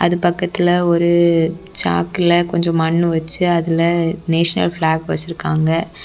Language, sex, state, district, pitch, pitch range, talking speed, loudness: Tamil, female, Tamil Nadu, Kanyakumari, 170 Hz, 165-175 Hz, 110 wpm, -16 LUFS